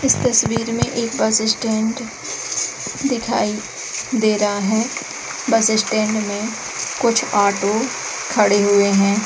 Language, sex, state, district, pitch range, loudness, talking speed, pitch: Hindi, female, Chhattisgarh, Bilaspur, 210-235 Hz, -18 LUFS, 105 wpm, 220 Hz